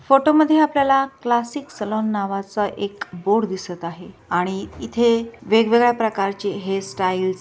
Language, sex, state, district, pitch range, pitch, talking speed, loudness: Marathi, female, Maharashtra, Dhule, 195-240 Hz, 210 Hz, 145 wpm, -20 LUFS